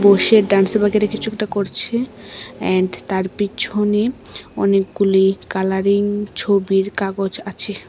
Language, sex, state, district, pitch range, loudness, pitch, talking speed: Bengali, female, Tripura, West Tripura, 195-210 Hz, -18 LUFS, 200 Hz, 105 wpm